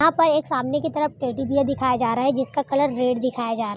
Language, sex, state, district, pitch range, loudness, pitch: Hindi, female, Uttar Pradesh, Budaun, 250-290 Hz, -22 LUFS, 270 Hz